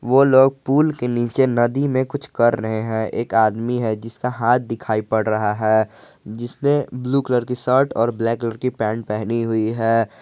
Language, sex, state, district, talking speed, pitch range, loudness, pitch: Hindi, male, Jharkhand, Garhwa, 195 wpm, 110-130 Hz, -19 LUFS, 115 Hz